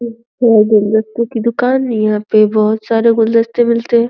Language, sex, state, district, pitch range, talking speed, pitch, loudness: Hindi, female, Uttar Pradesh, Deoria, 220-235 Hz, 175 wpm, 230 Hz, -13 LUFS